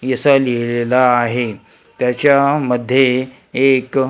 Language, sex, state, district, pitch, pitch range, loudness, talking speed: Marathi, male, Maharashtra, Gondia, 130 Hz, 125-135 Hz, -15 LUFS, 75 wpm